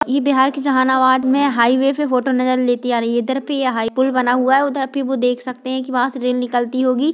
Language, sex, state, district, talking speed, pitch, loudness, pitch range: Hindi, female, Bihar, Jahanabad, 260 wpm, 260 Hz, -17 LUFS, 250-270 Hz